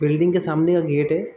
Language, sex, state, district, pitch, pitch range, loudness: Hindi, male, Chhattisgarh, Raigarh, 160 Hz, 150-175 Hz, -20 LUFS